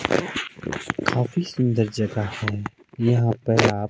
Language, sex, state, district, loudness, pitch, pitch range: Hindi, male, Himachal Pradesh, Shimla, -23 LUFS, 115 Hz, 105-120 Hz